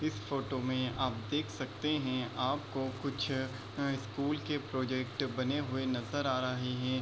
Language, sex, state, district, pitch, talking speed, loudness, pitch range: Hindi, male, Bihar, East Champaran, 130 Hz, 160 wpm, -35 LUFS, 125-140 Hz